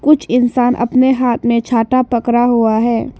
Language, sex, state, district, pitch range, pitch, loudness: Hindi, female, Arunachal Pradesh, Papum Pare, 235-255 Hz, 240 Hz, -13 LUFS